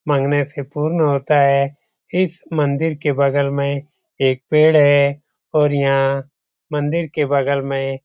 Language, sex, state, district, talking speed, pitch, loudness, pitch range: Hindi, male, Bihar, Jamui, 150 wpm, 145 Hz, -18 LUFS, 140-150 Hz